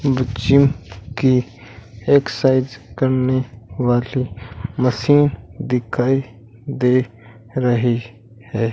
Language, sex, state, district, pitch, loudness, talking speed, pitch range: Hindi, male, Rajasthan, Bikaner, 125 Hz, -18 LUFS, 70 wpm, 115-130 Hz